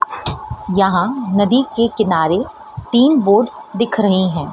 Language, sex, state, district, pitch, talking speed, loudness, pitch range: Hindi, female, Madhya Pradesh, Dhar, 210 Hz, 120 wpm, -16 LUFS, 190-235 Hz